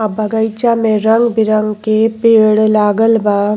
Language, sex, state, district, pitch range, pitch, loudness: Bhojpuri, female, Uttar Pradesh, Ghazipur, 215-225 Hz, 215 Hz, -12 LUFS